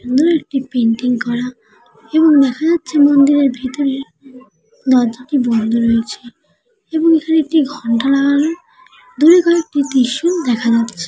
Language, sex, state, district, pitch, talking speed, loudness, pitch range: Bengali, female, West Bengal, Jalpaiguri, 275 Hz, 115 wpm, -14 LUFS, 245-320 Hz